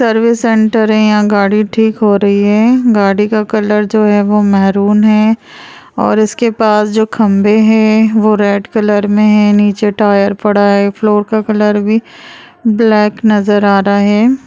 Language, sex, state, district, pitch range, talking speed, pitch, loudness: Hindi, female, Bihar, Begusarai, 205-220 Hz, 170 wpm, 215 Hz, -10 LUFS